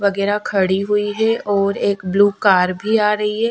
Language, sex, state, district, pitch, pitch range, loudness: Hindi, female, Bihar, Patna, 205 Hz, 195-210 Hz, -17 LUFS